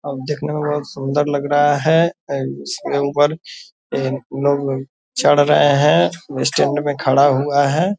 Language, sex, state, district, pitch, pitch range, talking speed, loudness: Hindi, male, Bihar, Purnia, 145 Hz, 140-145 Hz, 150 wpm, -17 LUFS